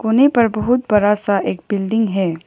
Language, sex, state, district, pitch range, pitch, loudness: Hindi, female, Arunachal Pradesh, Lower Dibang Valley, 200-225 Hz, 210 Hz, -16 LUFS